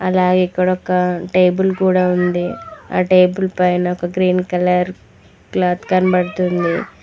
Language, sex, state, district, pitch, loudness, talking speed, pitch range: Telugu, female, Telangana, Mahabubabad, 180 Hz, -16 LUFS, 110 wpm, 180-185 Hz